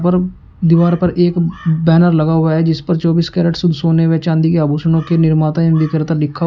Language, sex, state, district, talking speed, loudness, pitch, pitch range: Hindi, male, Uttar Pradesh, Shamli, 225 wpm, -14 LUFS, 165 Hz, 160-170 Hz